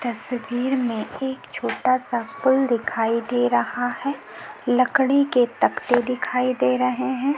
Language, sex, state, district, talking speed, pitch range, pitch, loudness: Hindi, female, Chhattisgarh, Korba, 140 wpm, 235-260 Hz, 245 Hz, -22 LUFS